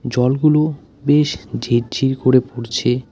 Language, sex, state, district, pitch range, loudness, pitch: Bengali, male, West Bengal, Alipurduar, 125-145 Hz, -17 LUFS, 130 Hz